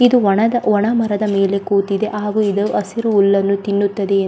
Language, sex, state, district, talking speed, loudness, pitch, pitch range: Kannada, female, Karnataka, Belgaum, 170 wpm, -16 LUFS, 205 Hz, 200-215 Hz